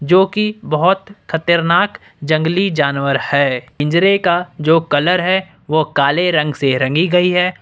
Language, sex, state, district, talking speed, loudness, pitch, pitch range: Hindi, male, Jharkhand, Ranchi, 150 wpm, -15 LUFS, 170 Hz, 150-185 Hz